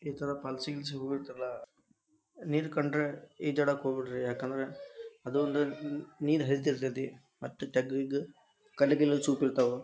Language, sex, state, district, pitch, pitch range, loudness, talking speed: Kannada, male, Karnataka, Dharwad, 145 Hz, 135-150 Hz, -33 LUFS, 120 wpm